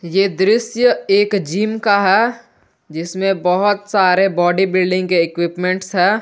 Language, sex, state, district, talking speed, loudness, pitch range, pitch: Hindi, male, Jharkhand, Garhwa, 135 wpm, -16 LUFS, 180-205 Hz, 190 Hz